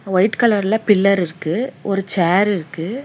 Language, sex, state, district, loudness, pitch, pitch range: Tamil, female, Karnataka, Bangalore, -17 LUFS, 195 Hz, 180-210 Hz